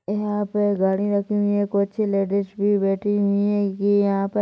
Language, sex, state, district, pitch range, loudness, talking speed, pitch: Hindi, female, Chhattisgarh, Rajnandgaon, 200-205 Hz, -21 LUFS, 205 wpm, 205 Hz